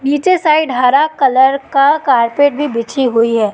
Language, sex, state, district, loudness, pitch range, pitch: Hindi, female, Madhya Pradesh, Katni, -12 LUFS, 250-310 Hz, 280 Hz